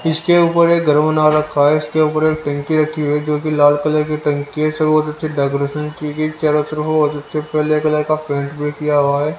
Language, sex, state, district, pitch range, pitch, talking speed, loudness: Hindi, male, Haryana, Rohtak, 150-155 Hz, 150 Hz, 250 wpm, -16 LUFS